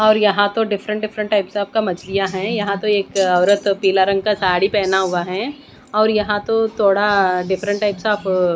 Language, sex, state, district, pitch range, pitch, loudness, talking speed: Hindi, female, Odisha, Nuapada, 190-210 Hz, 205 Hz, -18 LUFS, 205 wpm